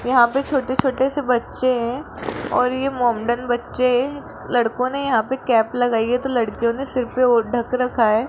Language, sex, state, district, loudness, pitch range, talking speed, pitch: Hindi, male, Rajasthan, Jaipur, -20 LUFS, 235-260 Hz, 195 wpm, 250 Hz